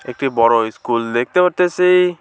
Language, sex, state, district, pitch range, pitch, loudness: Bengali, male, West Bengal, Alipurduar, 115-180 Hz, 135 Hz, -16 LUFS